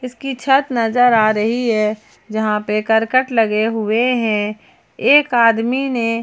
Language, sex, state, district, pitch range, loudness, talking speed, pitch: Hindi, female, Jharkhand, Ranchi, 215-250 Hz, -16 LUFS, 145 wpm, 230 Hz